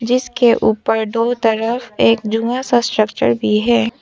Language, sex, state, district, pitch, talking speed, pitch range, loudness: Hindi, female, Arunachal Pradesh, Papum Pare, 230 Hz, 150 wpm, 220-240 Hz, -16 LUFS